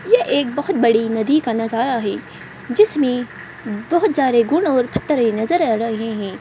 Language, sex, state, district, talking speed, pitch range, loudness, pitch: Hindi, female, Bihar, Madhepura, 170 wpm, 225-295 Hz, -18 LUFS, 245 Hz